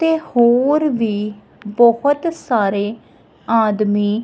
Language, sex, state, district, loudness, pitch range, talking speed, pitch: Punjabi, female, Punjab, Kapurthala, -16 LUFS, 210-280 Hz, 85 wpm, 230 Hz